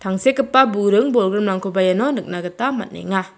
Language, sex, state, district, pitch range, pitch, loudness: Garo, female, Meghalaya, South Garo Hills, 190-260 Hz, 205 Hz, -18 LUFS